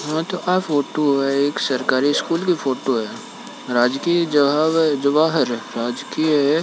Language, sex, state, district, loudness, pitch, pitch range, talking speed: Hindi, male, Rajasthan, Nagaur, -19 LUFS, 150 Hz, 140-160 Hz, 100 wpm